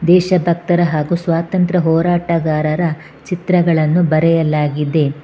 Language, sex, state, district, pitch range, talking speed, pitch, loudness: Kannada, female, Karnataka, Bangalore, 155-175 Hz, 70 wpm, 165 Hz, -15 LUFS